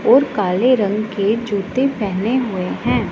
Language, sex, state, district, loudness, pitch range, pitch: Hindi, female, Punjab, Pathankot, -18 LUFS, 200-255 Hz, 215 Hz